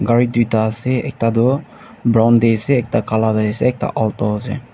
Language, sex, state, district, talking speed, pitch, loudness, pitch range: Nagamese, male, Nagaland, Dimapur, 190 wpm, 115 Hz, -17 LUFS, 110-120 Hz